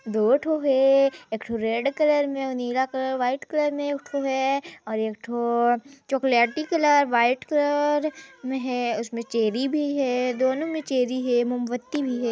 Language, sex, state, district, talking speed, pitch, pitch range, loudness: Hindi, female, Chhattisgarh, Sarguja, 180 wpm, 265 Hz, 240-285 Hz, -24 LUFS